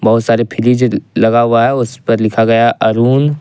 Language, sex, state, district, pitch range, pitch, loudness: Hindi, male, Jharkhand, Ranchi, 115-125 Hz, 115 Hz, -12 LUFS